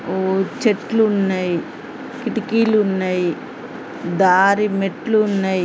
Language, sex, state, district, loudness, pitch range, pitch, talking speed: Telugu, female, Andhra Pradesh, Srikakulam, -18 LUFS, 185-215 Hz, 195 Hz, 85 wpm